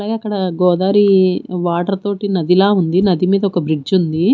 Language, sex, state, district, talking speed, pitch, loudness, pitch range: Telugu, female, Andhra Pradesh, Manyam, 165 wpm, 185 Hz, -15 LUFS, 180-200 Hz